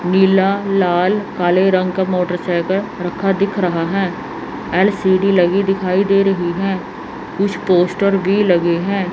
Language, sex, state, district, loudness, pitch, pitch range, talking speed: Hindi, female, Chandigarh, Chandigarh, -16 LUFS, 190 Hz, 180-195 Hz, 140 wpm